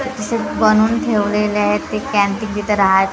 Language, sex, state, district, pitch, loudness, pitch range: Marathi, female, Maharashtra, Gondia, 210 Hz, -16 LUFS, 205-220 Hz